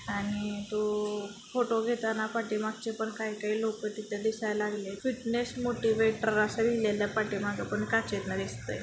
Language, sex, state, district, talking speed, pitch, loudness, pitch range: Marathi, female, Maharashtra, Sindhudurg, 130 wpm, 215 Hz, -31 LUFS, 210-225 Hz